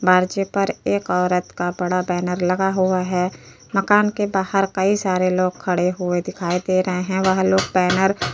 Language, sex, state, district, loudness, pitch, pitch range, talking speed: Hindi, female, Uttar Pradesh, Jyotiba Phule Nagar, -20 LUFS, 185 Hz, 180-190 Hz, 185 wpm